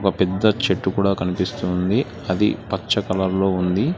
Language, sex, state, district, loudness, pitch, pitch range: Telugu, male, Telangana, Hyderabad, -21 LUFS, 95 Hz, 95-105 Hz